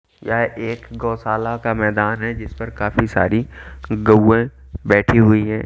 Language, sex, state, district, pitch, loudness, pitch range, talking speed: Hindi, male, Haryana, Charkhi Dadri, 110 Hz, -18 LUFS, 105-115 Hz, 150 wpm